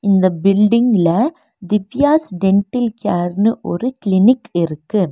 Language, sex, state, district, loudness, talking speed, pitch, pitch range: Tamil, female, Tamil Nadu, Nilgiris, -16 LUFS, 95 wpm, 205 Hz, 185-240 Hz